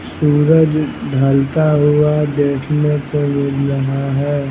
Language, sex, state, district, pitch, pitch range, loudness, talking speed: Hindi, male, Bihar, Patna, 145 Hz, 140-150 Hz, -15 LUFS, 105 wpm